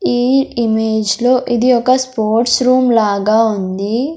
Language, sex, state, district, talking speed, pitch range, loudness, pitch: Telugu, female, Andhra Pradesh, Sri Satya Sai, 130 wpm, 220-255 Hz, -14 LUFS, 235 Hz